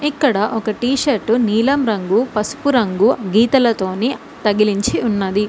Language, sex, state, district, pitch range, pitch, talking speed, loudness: Telugu, female, Telangana, Mahabubabad, 210-260 Hz, 225 Hz, 120 wpm, -17 LUFS